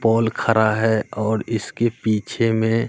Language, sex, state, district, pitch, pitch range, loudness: Hindi, male, Bihar, Katihar, 110 Hz, 110-115 Hz, -20 LUFS